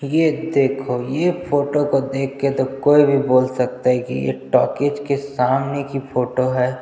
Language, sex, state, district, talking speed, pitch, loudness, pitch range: Hindi, male, Chhattisgarh, Jashpur, 185 wpm, 135 Hz, -19 LUFS, 130-145 Hz